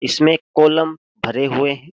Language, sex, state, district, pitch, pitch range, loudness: Hindi, male, Uttar Pradesh, Jyotiba Phule Nagar, 155 Hz, 140-160 Hz, -17 LUFS